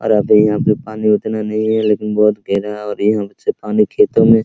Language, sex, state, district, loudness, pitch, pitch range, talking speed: Hindi, male, Bihar, Araria, -15 LUFS, 105 Hz, 105-110 Hz, 230 wpm